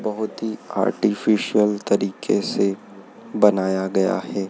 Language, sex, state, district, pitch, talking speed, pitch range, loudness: Hindi, male, Madhya Pradesh, Dhar, 105 Hz, 105 wpm, 100-110 Hz, -21 LUFS